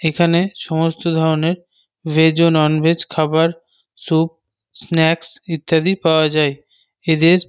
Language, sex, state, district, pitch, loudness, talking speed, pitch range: Bengali, male, West Bengal, North 24 Parganas, 165 Hz, -17 LUFS, 105 wpm, 160-170 Hz